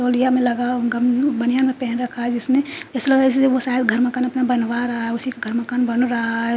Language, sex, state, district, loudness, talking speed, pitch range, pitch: Hindi, female, Punjab, Fazilka, -19 LUFS, 265 wpm, 240-255 Hz, 245 Hz